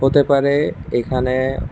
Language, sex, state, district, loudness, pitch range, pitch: Bengali, male, Tripura, West Tripura, -18 LUFS, 130-140 Hz, 135 Hz